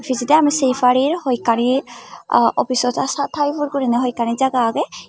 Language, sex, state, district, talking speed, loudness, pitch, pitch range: Chakma, female, Tripura, Unakoti, 175 wpm, -18 LUFS, 260 Hz, 245-285 Hz